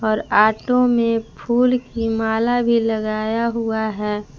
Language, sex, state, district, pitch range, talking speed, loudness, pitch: Hindi, female, Jharkhand, Palamu, 215-235 Hz, 135 wpm, -19 LUFS, 225 Hz